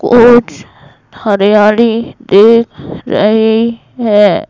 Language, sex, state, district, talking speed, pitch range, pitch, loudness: Hindi, female, Madhya Pradesh, Bhopal, 65 wpm, 210-235 Hz, 225 Hz, -9 LUFS